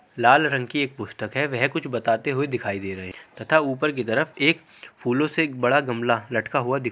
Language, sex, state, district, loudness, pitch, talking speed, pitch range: Hindi, male, Uttar Pradesh, Hamirpur, -23 LUFS, 130 Hz, 240 wpm, 115-150 Hz